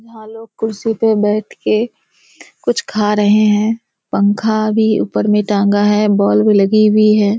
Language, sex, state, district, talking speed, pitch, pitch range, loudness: Hindi, female, Bihar, Kishanganj, 170 wpm, 215 Hz, 210-220 Hz, -14 LUFS